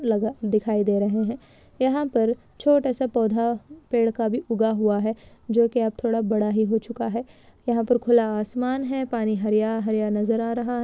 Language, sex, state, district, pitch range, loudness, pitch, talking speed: Hindi, female, Bihar, Darbhanga, 220-240 Hz, -23 LUFS, 230 Hz, 205 wpm